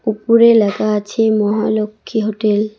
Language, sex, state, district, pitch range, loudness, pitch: Bengali, female, West Bengal, Cooch Behar, 210-220 Hz, -15 LUFS, 215 Hz